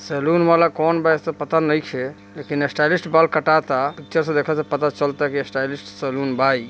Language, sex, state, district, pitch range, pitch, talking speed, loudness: Bhojpuri, male, Bihar, East Champaran, 140-160 Hz, 150 Hz, 215 wpm, -20 LUFS